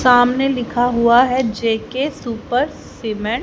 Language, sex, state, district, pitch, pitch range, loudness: Hindi, female, Haryana, Jhajjar, 245 Hz, 230-255 Hz, -17 LUFS